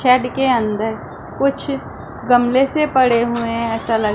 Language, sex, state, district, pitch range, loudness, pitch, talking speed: Hindi, female, Punjab, Pathankot, 230-265 Hz, -17 LUFS, 245 Hz, 160 wpm